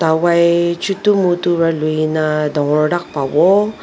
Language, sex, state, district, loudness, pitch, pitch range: Nagamese, female, Nagaland, Dimapur, -15 LUFS, 170 Hz, 155-175 Hz